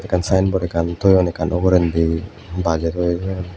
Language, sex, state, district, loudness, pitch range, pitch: Chakma, male, Tripura, Unakoti, -18 LUFS, 85-95 Hz, 90 Hz